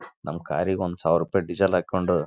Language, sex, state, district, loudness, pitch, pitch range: Kannada, male, Karnataka, Raichur, -25 LUFS, 90 Hz, 85-95 Hz